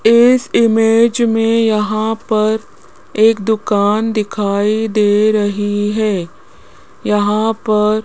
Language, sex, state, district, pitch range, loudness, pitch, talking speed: Hindi, female, Rajasthan, Jaipur, 210-225 Hz, -14 LUFS, 215 Hz, 105 wpm